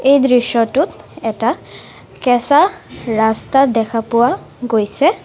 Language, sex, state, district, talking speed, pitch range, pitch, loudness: Assamese, female, Assam, Sonitpur, 90 wpm, 225-275 Hz, 240 Hz, -15 LUFS